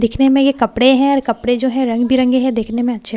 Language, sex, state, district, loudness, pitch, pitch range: Hindi, female, Bihar, Katihar, -14 LUFS, 250 Hz, 235-265 Hz